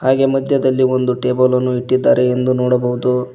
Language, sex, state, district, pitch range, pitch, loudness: Kannada, male, Karnataka, Koppal, 125-130 Hz, 125 Hz, -15 LUFS